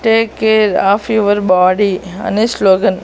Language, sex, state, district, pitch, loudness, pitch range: Telugu, female, Andhra Pradesh, Annamaya, 205 Hz, -13 LUFS, 190-220 Hz